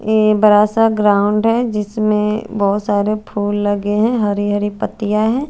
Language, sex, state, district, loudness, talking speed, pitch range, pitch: Hindi, female, Chandigarh, Chandigarh, -15 LUFS, 165 wpm, 205-220 Hz, 210 Hz